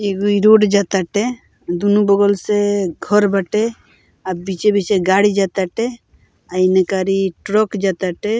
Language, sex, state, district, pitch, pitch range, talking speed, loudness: Bhojpuri, female, Bihar, Muzaffarpur, 200 Hz, 190-210 Hz, 150 wpm, -16 LUFS